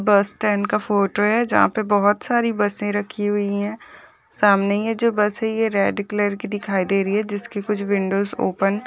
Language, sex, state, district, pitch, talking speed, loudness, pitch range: Hindi, female, Chhattisgarh, Korba, 205 Hz, 210 wpm, -20 LUFS, 200-210 Hz